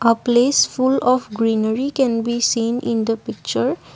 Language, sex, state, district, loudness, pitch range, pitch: English, female, Assam, Kamrup Metropolitan, -18 LUFS, 225-250 Hz, 235 Hz